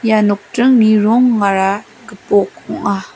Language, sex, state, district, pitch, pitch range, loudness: Garo, female, Meghalaya, West Garo Hills, 210 Hz, 200-230 Hz, -13 LUFS